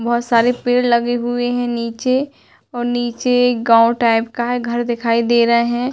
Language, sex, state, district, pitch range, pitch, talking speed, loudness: Hindi, female, Uttar Pradesh, Hamirpur, 235-245 Hz, 240 Hz, 190 wpm, -16 LUFS